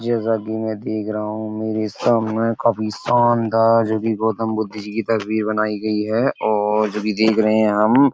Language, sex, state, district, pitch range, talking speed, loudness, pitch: Hindi, male, Uttar Pradesh, Etah, 110-115 Hz, 205 wpm, -19 LUFS, 110 Hz